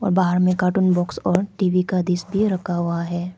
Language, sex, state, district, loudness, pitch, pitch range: Hindi, female, Arunachal Pradesh, Lower Dibang Valley, -20 LUFS, 180 Hz, 175-190 Hz